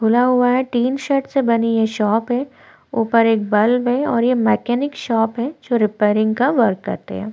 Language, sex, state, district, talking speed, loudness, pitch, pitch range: Hindi, female, Chhattisgarh, Korba, 205 wpm, -18 LUFS, 235 Hz, 220-255 Hz